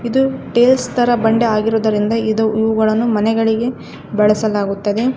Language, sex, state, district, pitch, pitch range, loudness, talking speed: Kannada, female, Karnataka, Koppal, 220 Hz, 215-235 Hz, -15 LUFS, 105 wpm